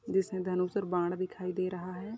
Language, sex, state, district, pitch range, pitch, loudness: Hindi, female, Uttar Pradesh, Budaun, 180-190 Hz, 185 Hz, -33 LUFS